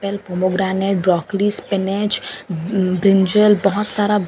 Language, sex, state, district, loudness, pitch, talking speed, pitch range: Hindi, female, Delhi, New Delhi, -18 LUFS, 195 Hz, 100 wpm, 185-205 Hz